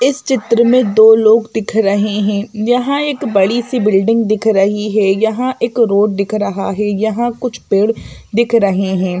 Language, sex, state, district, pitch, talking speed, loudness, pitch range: Hindi, female, Madhya Pradesh, Bhopal, 220 Hz, 180 wpm, -13 LUFS, 205-235 Hz